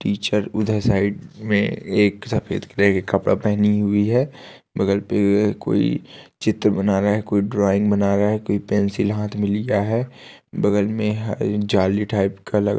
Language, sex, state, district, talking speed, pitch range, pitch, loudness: Hindi, male, Rajasthan, Nagaur, 180 wpm, 100-105 Hz, 105 Hz, -20 LUFS